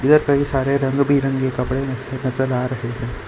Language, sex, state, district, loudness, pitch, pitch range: Hindi, male, Gujarat, Valsad, -20 LUFS, 130 Hz, 125-140 Hz